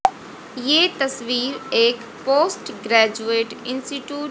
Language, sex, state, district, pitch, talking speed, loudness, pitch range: Hindi, female, Haryana, Rohtak, 260 Hz, 85 wpm, -20 LUFS, 230-285 Hz